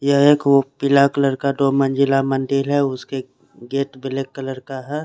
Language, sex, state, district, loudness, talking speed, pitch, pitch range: Hindi, male, Chandigarh, Chandigarh, -19 LUFS, 180 wpm, 135 Hz, 135-140 Hz